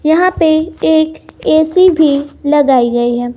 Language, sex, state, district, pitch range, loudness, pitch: Hindi, female, Bihar, West Champaran, 280-320 Hz, -12 LUFS, 310 Hz